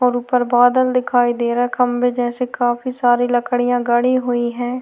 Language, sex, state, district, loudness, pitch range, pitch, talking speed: Hindi, female, Bihar, Vaishali, -17 LUFS, 245-250 Hz, 245 Hz, 185 wpm